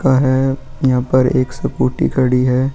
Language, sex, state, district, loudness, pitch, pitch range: Hindi, male, Goa, North and South Goa, -16 LUFS, 130 Hz, 125-130 Hz